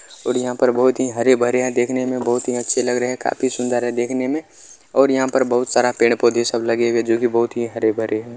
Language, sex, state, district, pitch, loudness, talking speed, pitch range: Maithili, male, Bihar, Kishanganj, 125 Hz, -19 LUFS, 245 wpm, 120-125 Hz